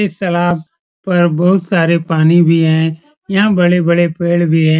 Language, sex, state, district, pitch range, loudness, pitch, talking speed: Hindi, male, Bihar, Supaul, 160-180 Hz, -13 LUFS, 170 Hz, 165 wpm